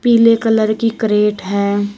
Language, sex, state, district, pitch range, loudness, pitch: Hindi, female, Uttar Pradesh, Shamli, 205-230 Hz, -14 LUFS, 215 Hz